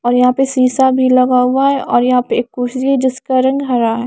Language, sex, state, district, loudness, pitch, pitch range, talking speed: Hindi, female, Maharashtra, Mumbai Suburban, -13 LUFS, 255 Hz, 245-265 Hz, 265 wpm